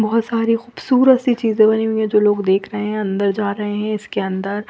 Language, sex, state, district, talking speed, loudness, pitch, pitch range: Hindi, female, Punjab, Fazilka, 245 wpm, -17 LUFS, 215 Hz, 205-225 Hz